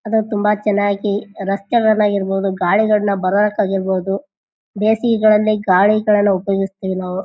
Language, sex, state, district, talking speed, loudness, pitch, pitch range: Kannada, female, Karnataka, Bijapur, 100 wpm, -16 LUFS, 205 Hz, 195-215 Hz